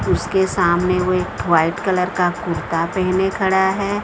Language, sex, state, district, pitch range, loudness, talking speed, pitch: Hindi, female, Odisha, Sambalpur, 175-190 Hz, -18 LUFS, 165 wpm, 185 Hz